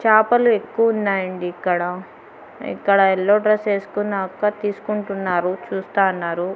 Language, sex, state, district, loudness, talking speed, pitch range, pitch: Telugu, female, Andhra Pradesh, Annamaya, -20 LUFS, 90 wpm, 185-210 Hz, 195 Hz